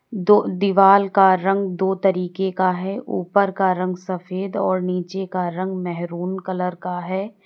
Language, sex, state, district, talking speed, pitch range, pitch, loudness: Hindi, female, Uttar Pradesh, Lalitpur, 160 wpm, 185-195 Hz, 190 Hz, -20 LUFS